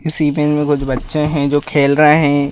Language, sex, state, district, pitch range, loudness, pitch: Hindi, male, Madhya Pradesh, Bhopal, 145-150 Hz, -14 LUFS, 145 Hz